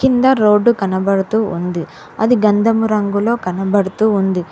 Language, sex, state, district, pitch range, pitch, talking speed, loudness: Telugu, female, Telangana, Hyderabad, 190-225 Hz, 210 Hz, 105 wpm, -15 LUFS